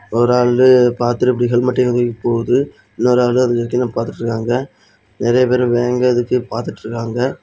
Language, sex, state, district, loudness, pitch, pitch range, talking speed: Tamil, male, Tamil Nadu, Kanyakumari, -16 LUFS, 120 Hz, 120-125 Hz, 135 wpm